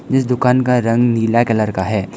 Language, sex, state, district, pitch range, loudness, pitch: Hindi, male, Arunachal Pradesh, Lower Dibang Valley, 110-125 Hz, -15 LUFS, 115 Hz